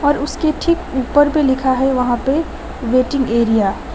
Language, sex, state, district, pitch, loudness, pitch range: Hindi, female, West Bengal, Alipurduar, 265 Hz, -16 LUFS, 250-290 Hz